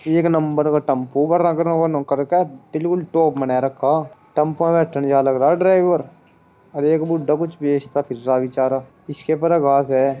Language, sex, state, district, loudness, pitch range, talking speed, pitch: Hindi, male, Uttar Pradesh, Muzaffarnagar, -19 LUFS, 135-165 Hz, 190 wpm, 150 Hz